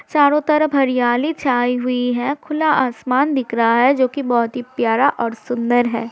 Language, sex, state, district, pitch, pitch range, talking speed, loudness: Hindi, female, Bihar, Jahanabad, 250 Hz, 240-285 Hz, 185 wpm, -17 LUFS